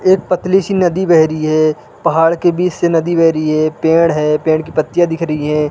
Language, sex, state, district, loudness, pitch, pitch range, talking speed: Hindi, male, Uttarakhand, Uttarkashi, -13 LUFS, 165 Hz, 155-175 Hz, 240 wpm